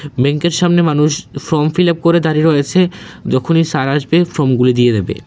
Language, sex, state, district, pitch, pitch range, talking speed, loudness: Bengali, male, Tripura, West Tripura, 155 Hz, 140-170 Hz, 160 wpm, -14 LUFS